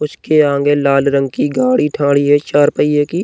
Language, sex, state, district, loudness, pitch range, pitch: Hindi, male, Uttar Pradesh, Jyotiba Phule Nagar, -13 LUFS, 140-150 Hz, 145 Hz